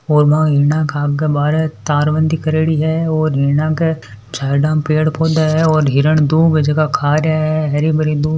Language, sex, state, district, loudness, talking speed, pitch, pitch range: Marwari, female, Rajasthan, Nagaur, -15 LUFS, 155 wpm, 155 Hz, 145-155 Hz